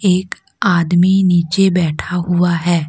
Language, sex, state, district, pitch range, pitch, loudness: Hindi, female, Jharkhand, Deoghar, 175-185 Hz, 175 Hz, -15 LUFS